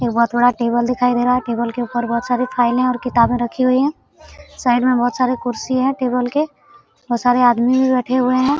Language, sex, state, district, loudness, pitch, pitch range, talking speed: Hindi, female, Jharkhand, Sahebganj, -17 LUFS, 245 Hz, 240-255 Hz, 230 wpm